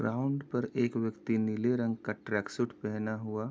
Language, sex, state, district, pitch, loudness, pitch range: Hindi, male, Uttar Pradesh, Jyotiba Phule Nagar, 115 Hz, -33 LUFS, 110-120 Hz